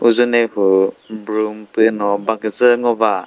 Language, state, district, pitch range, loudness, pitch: Chakhesang, Nagaland, Dimapur, 105-115 Hz, -16 LUFS, 110 Hz